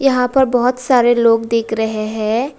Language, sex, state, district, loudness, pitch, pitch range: Hindi, female, Tripura, West Tripura, -15 LUFS, 240 Hz, 225-250 Hz